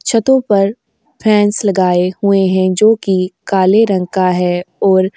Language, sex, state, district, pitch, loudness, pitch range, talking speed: Hindi, female, Uttar Pradesh, Jyotiba Phule Nagar, 195 Hz, -13 LUFS, 185-215 Hz, 150 wpm